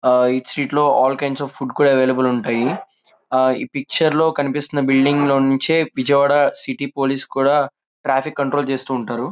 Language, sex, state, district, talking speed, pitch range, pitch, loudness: Telugu, male, Andhra Pradesh, Krishna, 140 wpm, 130-145 Hz, 135 Hz, -18 LUFS